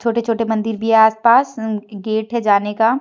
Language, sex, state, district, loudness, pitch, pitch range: Hindi, female, Jharkhand, Deoghar, -16 LUFS, 220 Hz, 220-230 Hz